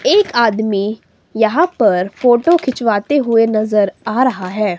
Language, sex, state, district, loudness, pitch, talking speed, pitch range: Hindi, female, Himachal Pradesh, Shimla, -14 LUFS, 225 Hz, 140 wpm, 210-260 Hz